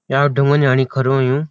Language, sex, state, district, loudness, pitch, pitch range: Garhwali, male, Uttarakhand, Uttarkashi, -15 LUFS, 135 Hz, 130-145 Hz